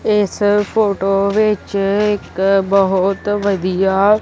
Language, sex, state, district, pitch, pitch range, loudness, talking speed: Punjabi, male, Punjab, Kapurthala, 200 Hz, 195-210 Hz, -15 LUFS, 85 wpm